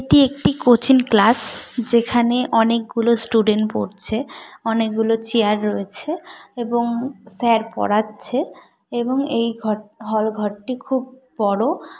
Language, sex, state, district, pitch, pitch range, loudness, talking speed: Bengali, female, West Bengal, Dakshin Dinajpur, 230 Hz, 220-250 Hz, -19 LUFS, 105 wpm